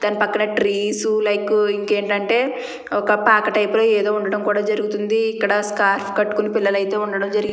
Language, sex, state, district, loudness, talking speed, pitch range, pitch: Telugu, female, Andhra Pradesh, Chittoor, -19 LUFS, 145 wpm, 205-215 Hz, 210 Hz